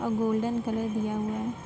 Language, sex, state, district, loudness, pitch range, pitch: Hindi, female, Uttar Pradesh, Budaun, -29 LUFS, 220-230 Hz, 225 Hz